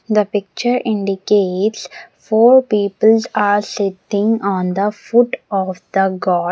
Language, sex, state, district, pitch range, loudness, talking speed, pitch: English, female, Maharashtra, Mumbai Suburban, 195-220 Hz, -16 LUFS, 120 wpm, 205 Hz